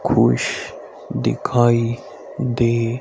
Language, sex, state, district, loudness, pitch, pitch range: Hindi, male, Haryana, Rohtak, -19 LUFS, 120 Hz, 115-125 Hz